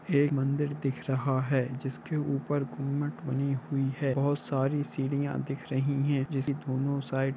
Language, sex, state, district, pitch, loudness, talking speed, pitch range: Hindi, male, Jharkhand, Jamtara, 140 Hz, -30 LUFS, 185 wpm, 135-145 Hz